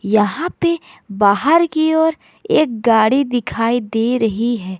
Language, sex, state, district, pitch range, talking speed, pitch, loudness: Hindi, female, Jharkhand, Garhwa, 220-315 Hz, 140 wpm, 240 Hz, -16 LUFS